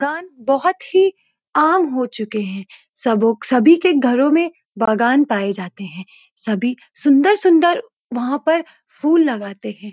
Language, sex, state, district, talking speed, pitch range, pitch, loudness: Hindi, female, Uttarakhand, Uttarkashi, 145 wpm, 225-330 Hz, 275 Hz, -17 LUFS